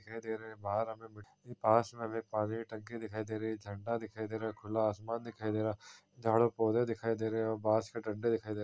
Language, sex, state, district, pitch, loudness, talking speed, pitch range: Hindi, male, Bihar, Supaul, 110 Hz, -36 LUFS, 250 wpm, 110-115 Hz